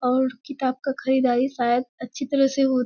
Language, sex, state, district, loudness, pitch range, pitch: Hindi, female, Bihar, Kishanganj, -23 LUFS, 250-270 Hz, 260 Hz